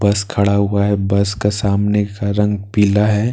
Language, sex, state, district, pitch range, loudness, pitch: Hindi, male, Bihar, Katihar, 100-105 Hz, -16 LUFS, 100 Hz